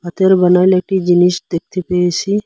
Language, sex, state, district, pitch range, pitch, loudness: Bengali, male, Assam, Hailakandi, 175-190 Hz, 180 Hz, -13 LUFS